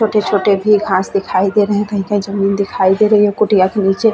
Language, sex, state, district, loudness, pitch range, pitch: Hindi, female, Chhattisgarh, Bastar, -14 LUFS, 195-210 Hz, 200 Hz